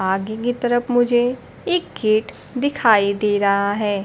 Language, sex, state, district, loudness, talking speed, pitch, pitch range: Hindi, female, Bihar, Kaimur, -19 LUFS, 150 wpm, 220 Hz, 205-245 Hz